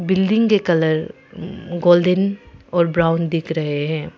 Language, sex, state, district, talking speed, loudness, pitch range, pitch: Hindi, female, Arunachal Pradesh, Papum Pare, 130 wpm, -18 LUFS, 165-190 Hz, 175 Hz